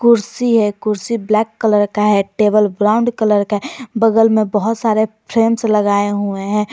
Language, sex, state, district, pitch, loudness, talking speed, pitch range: Hindi, female, Jharkhand, Garhwa, 215 Hz, -15 LUFS, 180 wpm, 210-225 Hz